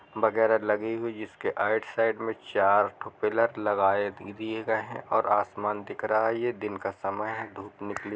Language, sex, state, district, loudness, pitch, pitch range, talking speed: Hindi, male, Bihar, East Champaran, -28 LUFS, 110 Hz, 100-110 Hz, 215 wpm